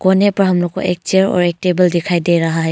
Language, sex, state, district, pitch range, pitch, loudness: Hindi, female, Arunachal Pradesh, Longding, 170-190 Hz, 180 Hz, -15 LUFS